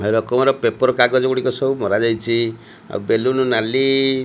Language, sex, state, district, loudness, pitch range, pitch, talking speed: Odia, male, Odisha, Malkangiri, -18 LUFS, 115-130 Hz, 130 Hz, 125 wpm